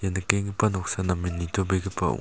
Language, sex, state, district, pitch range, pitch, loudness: Garo, male, Meghalaya, South Garo Hills, 90-100 Hz, 95 Hz, -26 LUFS